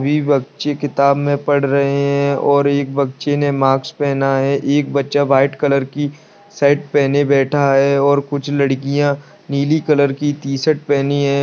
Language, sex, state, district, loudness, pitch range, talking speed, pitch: Hindi, male, Bihar, Lakhisarai, -16 LUFS, 140-145 Hz, 170 wpm, 140 Hz